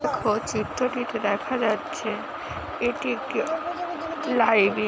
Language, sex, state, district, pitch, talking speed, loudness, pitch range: Bengali, female, West Bengal, Paschim Medinipur, 245 Hz, 110 wpm, -26 LUFS, 215-315 Hz